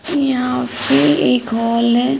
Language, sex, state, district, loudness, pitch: Hindi, female, Uttar Pradesh, Hamirpur, -15 LUFS, 235 Hz